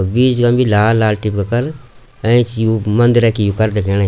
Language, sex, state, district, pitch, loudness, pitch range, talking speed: Garhwali, male, Uttarakhand, Tehri Garhwal, 115 Hz, -14 LUFS, 105-120 Hz, 205 wpm